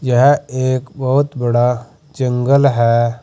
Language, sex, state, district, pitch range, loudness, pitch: Hindi, male, Uttar Pradesh, Saharanpur, 120-140 Hz, -15 LUFS, 130 Hz